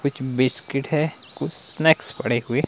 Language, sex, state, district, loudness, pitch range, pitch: Hindi, male, Himachal Pradesh, Shimla, -23 LUFS, 130-155 Hz, 135 Hz